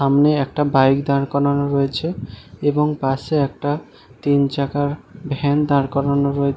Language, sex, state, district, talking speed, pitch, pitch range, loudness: Bengali, male, West Bengal, Malda, 135 wpm, 140 Hz, 140-145 Hz, -19 LUFS